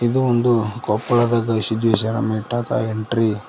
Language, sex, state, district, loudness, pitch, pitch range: Kannada, male, Karnataka, Koppal, -20 LUFS, 115 Hz, 110-120 Hz